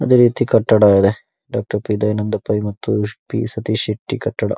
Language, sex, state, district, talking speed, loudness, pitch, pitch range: Kannada, male, Karnataka, Dakshina Kannada, 170 wpm, -17 LUFS, 105 Hz, 105-115 Hz